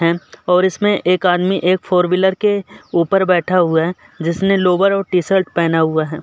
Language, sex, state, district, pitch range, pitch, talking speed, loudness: Hindi, male, Uttar Pradesh, Muzaffarnagar, 170-190 Hz, 180 Hz, 195 wpm, -16 LUFS